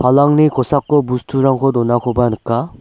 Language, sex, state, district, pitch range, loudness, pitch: Garo, male, Meghalaya, West Garo Hills, 120-145 Hz, -15 LUFS, 130 Hz